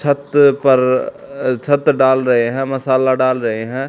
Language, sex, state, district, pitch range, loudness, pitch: Hindi, male, Haryana, Charkhi Dadri, 130-140 Hz, -15 LUFS, 130 Hz